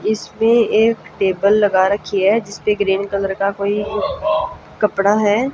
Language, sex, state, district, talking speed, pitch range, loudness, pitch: Hindi, female, Haryana, Jhajjar, 150 wpm, 200-220 Hz, -17 LUFS, 205 Hz